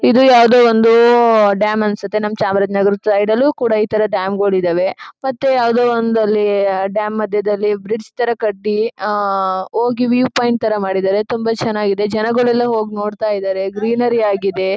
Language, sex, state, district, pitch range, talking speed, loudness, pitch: Kannada, female, Karnataka, Chamarajanagar, 200-235 Hz, 155 wpm, -15 LUFS, 215 Hz